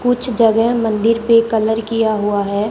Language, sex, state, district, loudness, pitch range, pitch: Hindi, female, Rajasthan, Bikaner, -15 LUFS, 215-230 Hz, 225 Hz